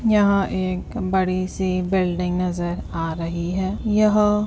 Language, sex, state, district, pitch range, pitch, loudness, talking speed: Hindi, female, Uttar Pradesh, Muzaffarnagar, 180-200 Hz, 185 Hz, -22 LUFS, 150 wpm